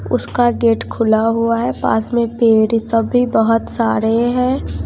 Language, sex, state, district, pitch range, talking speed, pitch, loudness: Hindi, female, Bihar, West Champaran, 225-240 Hz, 170 wpm, 230 Hz, -15 LUFS